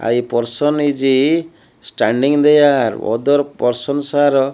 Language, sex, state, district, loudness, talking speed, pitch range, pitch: English, male, Odisha, Malkangiri, -15 LUFS, 120 wpm, 120-145 Hz, 140 Hz